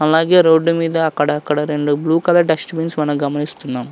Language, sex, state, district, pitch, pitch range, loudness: Telugu, male, Andhra Pradesh, Visakhapatnam, 155 Hz, 150-165 Hz, -16 LUFS